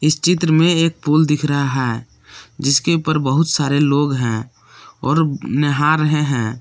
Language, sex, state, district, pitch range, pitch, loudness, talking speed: Hindi, male, Jharkhand, Palamu, 135-155 Hz, 145 Hz, -17 LUFS, 165 wpm